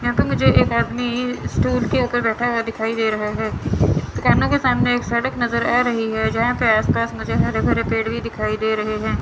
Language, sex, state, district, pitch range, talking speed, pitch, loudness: Hindi, female, Chandigarh, Chandigarh, 220-240 Hz, 240 wpm, 230 Hz, -19 LUFS